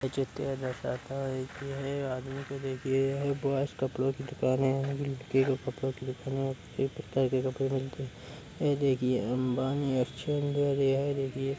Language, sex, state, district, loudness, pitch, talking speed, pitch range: Hindi, male, Uttar Pradesh, Deoria, -31 LUFS, 135 Hz, 190 wpm, 130-140 Hz